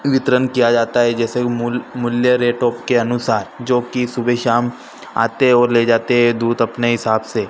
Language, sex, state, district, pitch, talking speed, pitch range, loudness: Hindi, male, Madhya Pradesh, Dhar, 120 Hz, 190 wpm, 120-125 Hz, -16 LUFS